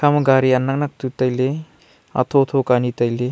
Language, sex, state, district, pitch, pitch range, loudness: Wancho, male, Arunachal Pradesh, Longding, 130 Hz, 125-145 Hz, -18 LUFS